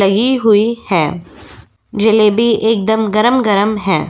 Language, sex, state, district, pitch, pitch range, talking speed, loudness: Hindi, female, Goa, North and South Goa, 210 Hz, 190-220 Hz, 105 wpm, -13 LUFS